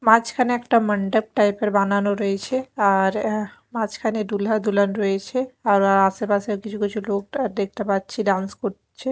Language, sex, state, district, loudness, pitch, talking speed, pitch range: Bengali, female, Chhattisgarh, Raipur, -22 LUFS, 210 Hz, 145 wpm, 200-220 Hz